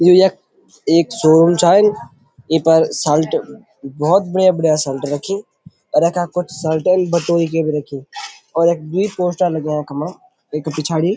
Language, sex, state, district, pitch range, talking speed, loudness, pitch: Garhwali, male, Uttarakhand, Uttarkashi, 155-180 Hz, 160 wpm, -16 LUFS, 165 Hz